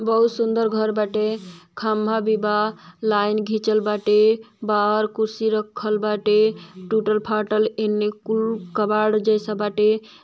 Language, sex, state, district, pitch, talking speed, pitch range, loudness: Bhojpuri, female, Uttar Pradesh, Ghazipur, 215 Hz, 125 wpm, 210-220 Hz, -21 LUFS